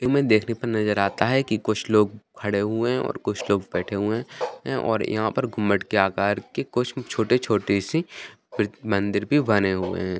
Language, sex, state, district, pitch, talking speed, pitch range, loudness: Hindi, male, Bihar, Bhagalpur, 110 Hz, 200 wpm, 100-120 Hz, -24 LUFS